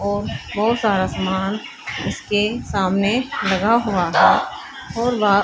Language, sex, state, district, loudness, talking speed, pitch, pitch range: Hindi, female, Haryana, Rohtak, -19 LUFS, 120 wpm, 205 Hz, 195-225 Hz